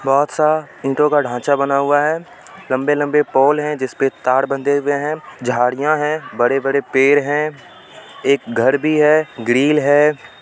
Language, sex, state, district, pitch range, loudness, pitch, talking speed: Hindi, male, Bihar, Supaul, 135-150 Hz, -16 LUFS, 145 Hz, 155 wpm